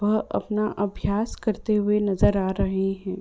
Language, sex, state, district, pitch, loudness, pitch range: Hindi, female, Uttar Pradesh, Ghazipur, 205 Hz, -24 LUFS, 195-215 Hz